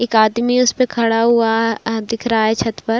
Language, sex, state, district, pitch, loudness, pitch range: Hindi, female, Bihar, Saran, 230 Hz, -16 LUFS, 225-235 Hz